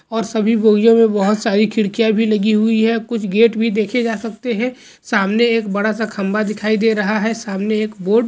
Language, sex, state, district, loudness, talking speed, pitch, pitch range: Hindi, male, West Bengal, Dakshin Dinajpur, -16 LUFS, 220 wpm, 220 Hz, 215-230 Hz